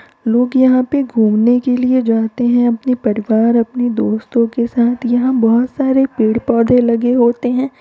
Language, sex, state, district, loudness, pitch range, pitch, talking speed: Hindi, female, Uttar Pradesh, Varanasi, -14 LUFS, 230-255 Hz, 245 Hz, 170 wpm